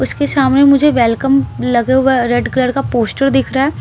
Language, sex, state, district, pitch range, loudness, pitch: Hindi, female, Bihar, Patna, 245-275 Hz, -13 LUFS, 265 Hz